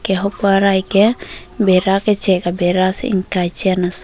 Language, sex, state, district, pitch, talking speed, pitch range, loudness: Karbi, female, Assam, Karbi Anglong, 190 Hz, 165 wpm, 185-200 Hz, -15 LUFS